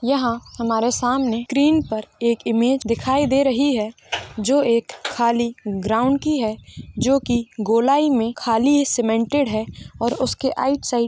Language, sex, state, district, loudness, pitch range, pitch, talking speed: Hindi, female, Jharkhand, Sahebganj, -20 LUFS, 230-270 Hz, 240 Hz, 150 wpm